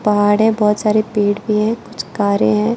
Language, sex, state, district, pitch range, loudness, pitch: Hindi, female, Arunachal Pradesh, Lower Dibang Valley, 205-220 Hz, -16 LUFS, 210 Hz